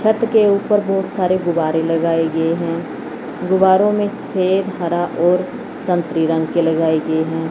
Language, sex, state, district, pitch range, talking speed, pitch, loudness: Hindi, male, Chandigarh, Chandigarh, 165-195 Hz, 160 wpm, 175 Hz, -17 LUFS